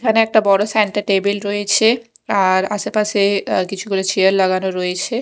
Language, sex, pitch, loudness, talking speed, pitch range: Bengali, female, 200 Hz, -17 LUFS, 160 wpm, 190-215 Hz